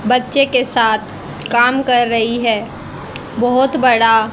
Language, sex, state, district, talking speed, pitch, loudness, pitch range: Hindi, female, Haryana, Rohtak, 125 wpm, 240 Hz, -14 LUFS, 225-255 Hz